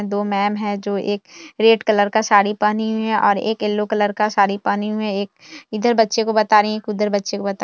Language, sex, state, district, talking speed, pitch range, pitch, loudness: Hindi, female, Bihar, Jamui, 250 wpm, 205-220 Hz, 210 Hz, -18 LUFS